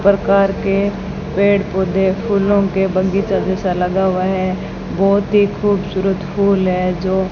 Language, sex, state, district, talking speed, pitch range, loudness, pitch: Hindi, female, Rajasthan, Bikaner, 140 wpm, 190-200 Hz, -16 LUFS, 195 Hz